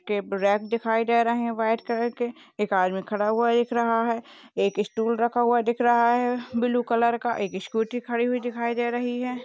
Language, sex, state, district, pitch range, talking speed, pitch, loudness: Hindi, female, Bihar, Purnia, 225-240 Hz, 215 wpm, 235 Hz, -25 LUFS